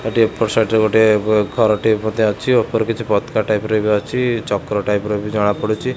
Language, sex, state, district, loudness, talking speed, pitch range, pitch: Odia, male, Odisha, Khordha, -17 LUFS, 160 wpm, 105-115 Hz, 110 Hz